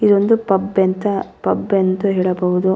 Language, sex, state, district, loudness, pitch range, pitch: Kannada, female, Karnataka, Raichur, -17 LUFS, 185-200 Hz, 195 Hz